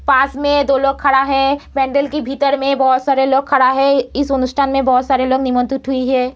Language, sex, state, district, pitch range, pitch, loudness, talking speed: Hindi, female, Bihar, Muzaffarpur, 260-275 Hz, 270 Hz, -15 LUFS, 225 wpm